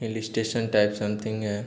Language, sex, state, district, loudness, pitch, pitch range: Hindi, male, Uttar Pradesh, Gorakhpur, -26 LUFS, 110 Hz, 105-110 Hz